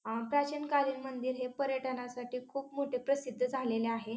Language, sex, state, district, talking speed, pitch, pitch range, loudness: Marathi, female, Maharashtra, Pune, 160 wpm, 255 Hz, 250-275 Hz, -35 LUFS